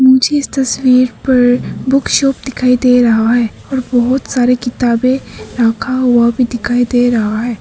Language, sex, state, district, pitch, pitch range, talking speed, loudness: Hindi, female, Arunachal Pradesh, Papum Pare, 250 Hz, 240-260 Hz, 160 wpm, -12 LUFS